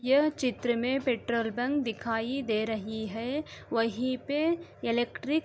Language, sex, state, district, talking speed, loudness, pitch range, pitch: Hindi, female, Uttar Pradesh, Jalaun, 145 wpm, -30 LUFS, 230-275 Hz, 245 Hz